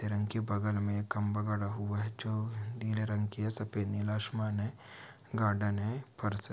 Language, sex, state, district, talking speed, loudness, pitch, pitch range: Hindi, male, Bihar, Araria, 200 wpm, -35 LUFS, 105 Hz, 105-110 Hz